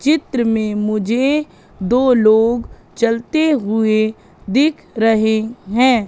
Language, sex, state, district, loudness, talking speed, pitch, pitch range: Hindi, female, Madhya Pradesh, Katni, -16 LUFS, 100 wpm, 230 Hz, 215-255 Hz